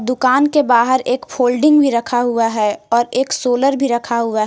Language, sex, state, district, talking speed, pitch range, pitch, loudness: Hindi, female, Jharkhand, Garhwa, 215 wpm, 235-260 Hz, 245 Hz, -15 LUFS